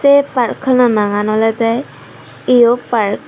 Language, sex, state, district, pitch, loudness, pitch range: Chakma, female, Tripura, Dhalai, 235 Hz, -13 LUFS, 220-250 Hz